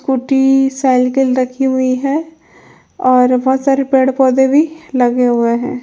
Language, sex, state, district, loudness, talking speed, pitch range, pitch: Hindi, female, Chhattisgarh, Raigarh, -13 LUFS, 145 wpm, 255-270 Hz, 265 Hz